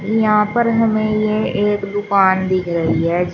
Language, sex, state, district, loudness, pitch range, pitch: Hindi, female, Uttar Pradesh, Shamli, -16 LUFS, 185-215 Hz, 205 Hz